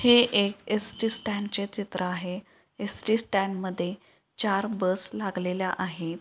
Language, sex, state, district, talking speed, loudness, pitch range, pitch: Marathi, female, Maharashtra, Pune, 125 wpm, -28 LUFS, 185-215 Hz, 200 Hz